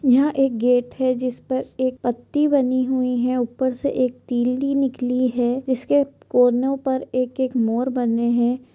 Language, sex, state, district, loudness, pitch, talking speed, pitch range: Hindi, female, Chhattisgarh, Korba, -21 LUFS, 255 Hz, 180 wpm, 245-265 Hz